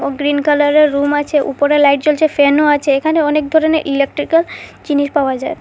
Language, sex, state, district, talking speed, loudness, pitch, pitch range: Bengali, female, Assam, Hailakandi, 180 wpm, -13 LUFS, 290 Hz, 285-300 Hz